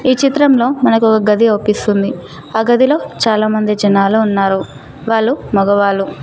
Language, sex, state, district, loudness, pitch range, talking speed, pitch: Telugu, female, Telangana, Mahabubabad, -13 LUFS, 200-235 Hz, 125 wpm, 215 Hz